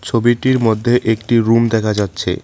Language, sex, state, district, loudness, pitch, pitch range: Bengali, male, West Bengal, Cooch Behar, -15 LUFS, 115 Hz, 105-120 Hz